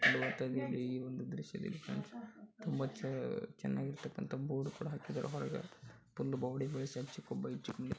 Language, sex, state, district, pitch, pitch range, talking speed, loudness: Kannada, male, Karnataka, Bijapur, 135 Hz, 130-185 Hz, 60 wpm, -41 LUFS